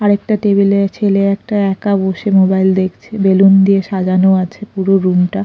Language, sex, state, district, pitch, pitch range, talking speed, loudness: Bengali, female, Odisha, Khordha, 195 Hz, 190-200 Hz, 185 wpm, -13 LUFS